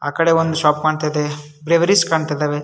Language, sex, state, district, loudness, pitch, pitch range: Kannada, male, Karnataka, Shimoga, -17 LUFS, 150 Hz, 150-165 Hz